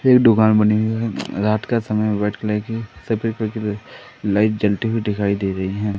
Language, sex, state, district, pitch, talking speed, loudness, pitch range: Hindi, male, Madhya Pradesh, Katni, 110 Hz, 200 wpm, -19 LUFS, 105-115 Hz